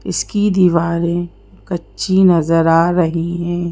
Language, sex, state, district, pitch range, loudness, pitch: Hindi, female, Madhya Pradesh, Bhopal, 170-180 Hz, -15 LUFS, 175 Hz